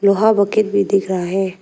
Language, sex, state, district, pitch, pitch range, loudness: Hindi, female, Arunachal Pradesh, Lower Dibang Valley, 200 Hz, 190-200 Hz, -16 LUFS